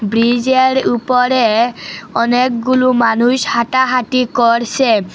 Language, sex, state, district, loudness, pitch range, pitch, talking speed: Bengali, female, Assam, Hailakandi, -13 LUFS, 230-255 Hz, 240 Hz, 70 wpm